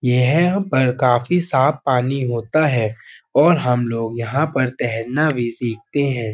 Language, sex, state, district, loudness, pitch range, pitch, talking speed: Hindi, male, Uttar Pradesh, Budaun, -18 LUFS, 120-145 Hz, 125 Hz, 150 wpm